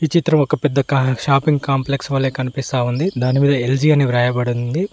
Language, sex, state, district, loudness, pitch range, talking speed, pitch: Telugu, male, Telangana, Mahabubabad, -17 LUFS, 130-150 Hz, 160 wpm, 135 Hz